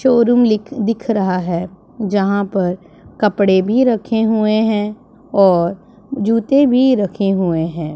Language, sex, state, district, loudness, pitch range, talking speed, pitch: Hindi, female, Punjab, Pathankot, -16 LUFS, 190-235 Hz, 135 wpm, 210 Hz